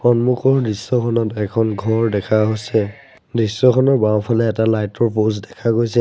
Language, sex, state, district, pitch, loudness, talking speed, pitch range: Assamese, male, Assam, Sonitpur, 115 Hz, -17 LUFS, 140 wpm, 110-120 Hz